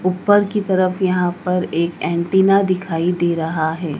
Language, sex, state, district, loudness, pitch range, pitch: Hindi, female, Madhya Pradesh, Dhar, -18 LUFS, 170-190 Hz, 180 Hz